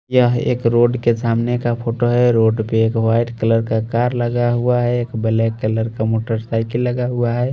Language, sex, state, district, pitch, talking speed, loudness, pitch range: Hindi, male, Delhi, New Delhi, 120 Hz, 205 wpm, -17 LUFS, 115-120 Hz